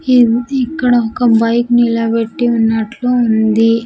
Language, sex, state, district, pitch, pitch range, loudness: Telugu, female, Andhra Pradesh, Sri Satya Sai, 235 Hz, 225-245 Hz, -13 LUFS